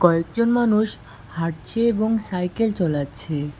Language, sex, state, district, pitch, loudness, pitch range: Bengali, female, West Bengal, Alipurduar, 175 Hz, -22 LUFS, 150-225 Hz